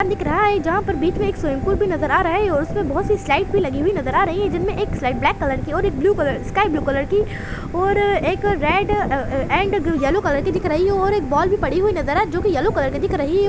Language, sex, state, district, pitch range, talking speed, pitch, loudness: Hindi, female, Chhattisgarh, Bilaspur, 345-405 Hz, 295 wpm, 390 Hz, -19 LUFS